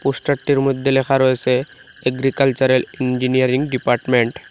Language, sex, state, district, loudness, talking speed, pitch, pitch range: Bengali, male, Assam, Hailakandi, -17 LUFS, 105 wpm, 130 Hz, 125-135 Hz